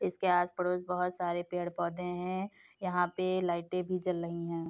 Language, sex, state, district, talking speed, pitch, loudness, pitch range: Hindi, female, Uttar Pradesh, Etah, 180 wpm, 180 Hz, -34 LUFS, 175-185 Hz